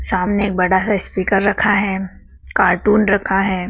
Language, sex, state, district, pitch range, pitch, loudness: Hindi, female, Madhya Pradesh, Dhar, 185-205 Hz, 195 Hz, -16 LUFS